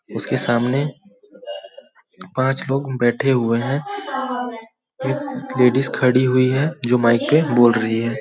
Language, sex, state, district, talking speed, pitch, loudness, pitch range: Hindi, male, Chhattisgarh, Balrampur, 130 wpm, 130 Hz, -19 LUFS, 120-155 Hz